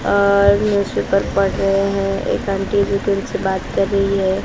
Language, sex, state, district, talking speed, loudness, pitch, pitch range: Hindi, female, Maharashtra, Mumbai Suburban, 190 wpm, -17 LUFS, 195 Hz, 195-200 Hz